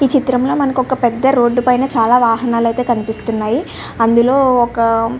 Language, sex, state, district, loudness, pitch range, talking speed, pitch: Telugu, female, Andhra Pradesh, Srikakulam, -14 LUFS, 230-260 Hz, 115 wpm, 245 Hz